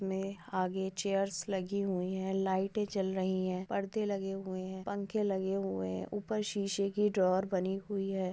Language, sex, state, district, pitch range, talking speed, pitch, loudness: Hindi, female, West Bengal, Dakshin Dinajpur, 185-200 Hz, 165 wpm, 195 Hz, -35 LUFS